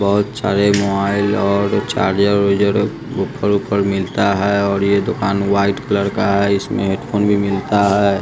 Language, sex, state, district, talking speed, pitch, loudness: Hindi, male, Bihar, West Champaran, 160 wpm, 100 Hz, -16 LUFS